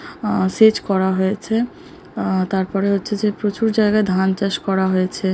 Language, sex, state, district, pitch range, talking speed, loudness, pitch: Bengali, male, West Bengal, Jhargram, 190-210 Hz, 155 wpm, -19 LUFS, 195 Hz